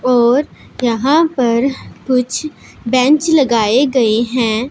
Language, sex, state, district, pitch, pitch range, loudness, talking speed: Hindi, female, Punjab, Pathankot, 255 Hz, 235-275 Hz, -14 LUFS, 100 wpm